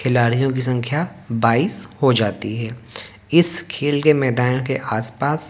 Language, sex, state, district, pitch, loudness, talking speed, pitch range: Hindi, male, Haryana, Jhajjar, 125 Hz, -19 LUFS, 140 wpm, 115-145 Hz